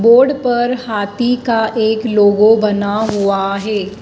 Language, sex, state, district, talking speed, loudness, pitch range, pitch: Hindi, female, Madhya Pradesh, Dhar, 135 wpm, -14 LUFS, 205-240 Hz, 220 Hz